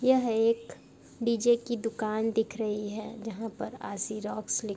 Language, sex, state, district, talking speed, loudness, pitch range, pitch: Hindi, female, Bihar, Darbhanga, 175 wpm, -30 LUFS, 215-230 Hz, 225 Hz